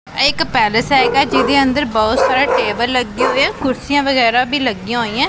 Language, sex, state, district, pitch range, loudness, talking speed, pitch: Punjabi, female, Punjab, Pathankot, 235-280 Hz, -14 LUFS, 190 wpm, 255 Hz